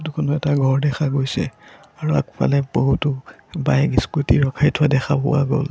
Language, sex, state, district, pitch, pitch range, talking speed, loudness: Assamese, male, Assam, Sonitpur, 140 Hz, 120-145 Hz, 160 wpm, -19 LUFS